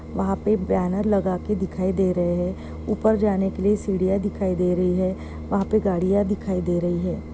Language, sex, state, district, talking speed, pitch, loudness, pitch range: Hindi, female, Maharashtra, Chandrapur, 190 wpm, 190 Hz, -23 LUFS, 180-200 Hz